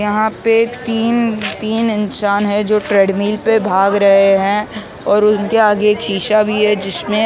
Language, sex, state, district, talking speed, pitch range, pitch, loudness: Hindi, male, Maharashtra, Mumbai Suburban, 175 wpm, 205-220 Hz, 210 Hz, -14 LUFS